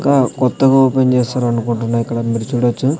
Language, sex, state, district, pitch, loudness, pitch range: Telugu, male, Andhra Pradesh, Sri Satya Sai, 125 Hz, -15 LUFS, 115-130 Hz